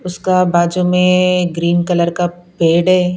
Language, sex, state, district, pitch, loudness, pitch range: Hindi, female, Punjab, Pathankot, 180 Hz, -14 LUFS, 175-180 Hz